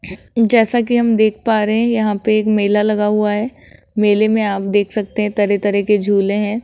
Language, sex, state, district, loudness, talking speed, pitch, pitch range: Hindi, female, Rajasthan, Jaipur, -16 LUFS, 225 wpm, 210 Hz, 205-220 Hz